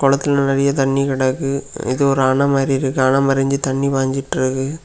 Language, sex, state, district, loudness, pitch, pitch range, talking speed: Tamil, male, Tamil Nadu, Kanyakumari, -17 LUFS, 135 Hz, 135-140 Hz, 160 wpm